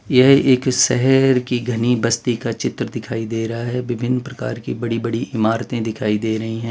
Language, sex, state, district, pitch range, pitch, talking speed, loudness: Hindi, male, Gujarat, Valsad, 115-125 Hz, 120 Hz, 195 wpm, -19 LUFS